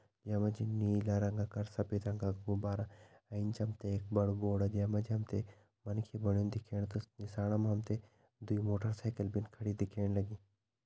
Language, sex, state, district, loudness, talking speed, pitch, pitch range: Hindi, male, Uttarakhand, Tehri Garhwal, -38 LUFS, 195 wpm, 105 Hz, 100-110 Hz